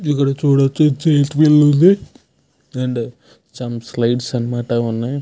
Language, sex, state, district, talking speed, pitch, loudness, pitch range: Telugu, male, Andhra Pradesh, Krishna, 90 wpm, 135 Hz, -16 LUFS, 120-145 Hz